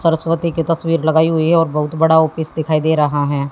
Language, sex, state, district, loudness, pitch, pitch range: Hindi, female, Haryana, Jhajjar, -16 LUFS, 160 Hz, 155-165 Hz